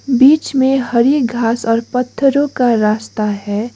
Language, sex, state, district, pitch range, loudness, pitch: Hindi, female, Sikkim, Gangtok, 230-270 Hz, -14 LUFS, 240 Hz